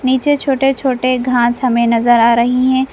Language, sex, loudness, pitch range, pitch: Hindi, female, -13 LUFS, 240-265 Hz, 255 Hz